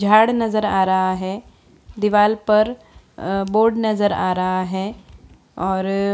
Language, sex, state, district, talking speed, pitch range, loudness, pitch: Hindi, female, Bihar, Begusarai, 115 wpm, 190-215 Hz, -19 LUFS, 205 Hz